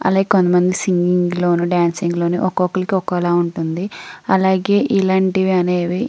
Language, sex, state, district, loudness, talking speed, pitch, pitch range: Telugu, female, Andhra Pradesh, Srikakulam, -17 LUFS, 130 wpm, 180 Hz, 175-190 Hz